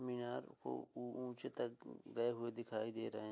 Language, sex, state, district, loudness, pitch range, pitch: Hindi, male, Uttar Pradesh, Hamirpur, -45 LUFS, 115-125 Hz, 120 Hz